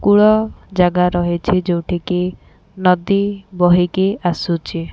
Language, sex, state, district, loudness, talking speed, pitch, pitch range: Odia, female, Odisha, Khordha, -17 LUFS, 95 wpm, 180 Hz, 175-195 Hz